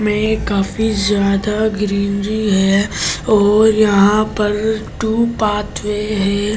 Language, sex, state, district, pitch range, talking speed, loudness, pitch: Hindi, male, Delhi, New Delhi, 200-215 Hz, 110 wpm, -15 LUFS, 210 Hz